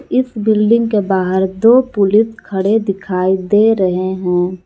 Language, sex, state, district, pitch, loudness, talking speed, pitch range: Hindi, female, Jharkhand, Palamu, 200 Hz, -14 LUFS, 140 wpm, 185-220 Hz